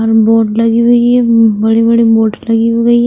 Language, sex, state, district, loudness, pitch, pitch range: Hindi, female, Himachal Pradesh, Shimla, -9 LUFS, 230 Hz, 225-235 Hz